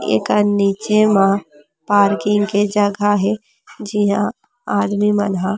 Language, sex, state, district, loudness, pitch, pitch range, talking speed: Chhattisgarhi, female, Chhattisgarh, Rajnandgaon, -17 LUFS, 205 Hz, 200-210 Hz, 120 wpm